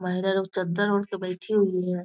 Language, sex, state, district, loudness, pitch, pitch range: Hindi, female, Bihar, Muzaffarpur, -26 LUFS, 190 Hz, 180-200 Hz